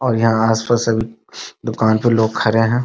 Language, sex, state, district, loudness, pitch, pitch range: Hindi, male, Bihar, Muzaffarpur, -17 LUFS, 115 Hz, 110-115 Hz